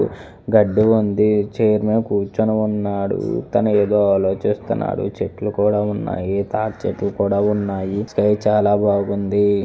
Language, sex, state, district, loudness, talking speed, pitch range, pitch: Telugu, male, Andhra Pradesh, Visakhapatnam, -19 LUFS, 110 wpm, 100-105 Hz, 105 Hz